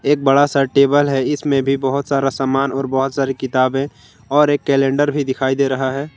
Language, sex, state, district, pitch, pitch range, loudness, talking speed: Hindi, male, Jharkhand, Ranchi, 135 Hz, 135-140 Hz, -17 LUFS, 215 wpm